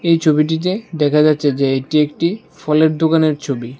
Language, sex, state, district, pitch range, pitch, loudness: Bengali, male, Tripura, West Tripura, 145-160 Hz, 155 Hz, -16 LUFS